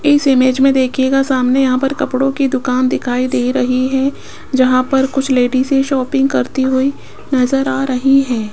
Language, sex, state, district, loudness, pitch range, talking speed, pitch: Hindi, female, Rajasthan, Jaipur, -14 LUFS, 255-270 Hz, 175 wpm, 265 Hz